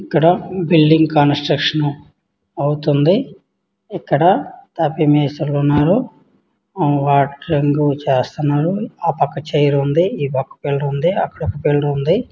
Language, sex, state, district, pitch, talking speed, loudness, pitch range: Telugu, male, Andhra Pradesh, Srikakulam, 145 Hz, 110 wpm, -16 LUFS, 145-160 Hz